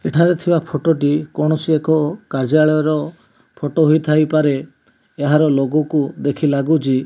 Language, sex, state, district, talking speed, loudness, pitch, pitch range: Odia, male, Odisha, Malkangiri, 135 wpm, -17 LUFS, 155 Hz, 145-155 Hz